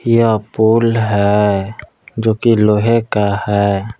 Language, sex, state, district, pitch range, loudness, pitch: Hindi, male, Jharkhand, Palamu, 105-115 Hz, -14 LUFS, 110 Hz